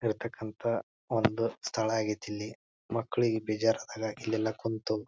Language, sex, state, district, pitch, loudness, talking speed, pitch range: Kannada, male, Karnataka, Bijapur, 110 Hz, -32 LUFS, 105 wpm, 110-115 Hz